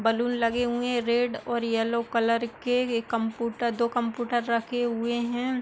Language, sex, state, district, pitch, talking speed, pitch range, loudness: Hindi, female, Uttar Pradesh, Hamirpur, 235 Hz, 170 wpm, 230-240 Hz, -27 LUFS